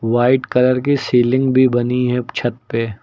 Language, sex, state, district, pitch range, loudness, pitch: Hindi, male, Uttar Pradesh, Lucknow, 120-130 Hz, -16 LUFS, 125 Hz